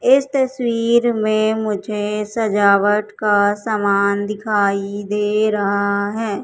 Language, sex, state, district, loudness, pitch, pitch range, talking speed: Hindi, male, Madhya Pradesh, Katni, -18 LUFS, 210 Hz, 205-220 Hz, 105 wpm